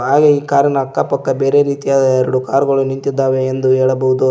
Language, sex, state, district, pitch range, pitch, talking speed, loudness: Kannada, male, Karnataka, Koppal, 130-140 Hz, 135 Hz, 180 wpm, -14 LUFS